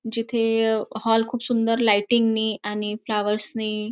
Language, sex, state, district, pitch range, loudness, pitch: Marathi, female, Maharashtra, Nagpur, 215-230 Hz, -22 LUFS, 220 Hz